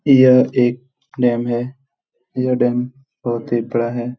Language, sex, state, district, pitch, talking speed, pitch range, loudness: Hindi, male, Bihar, Jamui, 125 Hz, 145 wpm, 120-130 Hz, -17 LUFS